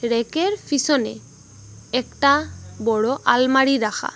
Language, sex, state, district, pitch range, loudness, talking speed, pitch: Bengali, female, Assam, Hailakandi, 215-280 Hz, -20 LUFS, 85 wpm, 250 Hz